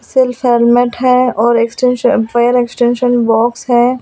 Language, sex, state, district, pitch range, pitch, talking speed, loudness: Hindi, female, Delhi, New Delhi, 235-250 Hz, 245 Hz, 135 wpm, -12 LUFS